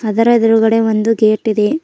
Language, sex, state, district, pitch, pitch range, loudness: Kannada, female, Karnataka, Bidar, 225 Hz, 215-225 Hz, -13 LUFS